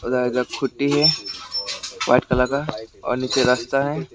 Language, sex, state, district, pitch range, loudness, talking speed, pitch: Hindi, male, West Bengal, Alipurduar, 125-140 Hz, -21 LUFS, 115 wpm, 130 Hz